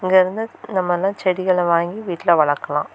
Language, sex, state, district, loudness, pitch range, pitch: Tamil, female, Tamil Nadu, Kanyakumari, -19 LUFS, 170-190 Hz, 185 Hz